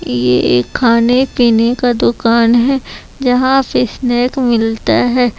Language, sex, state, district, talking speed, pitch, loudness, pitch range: Hindi, female, Chhattisgarh, Raipur, 145 wpm, 240 Hz, -12 LUFS, 230-250 Hz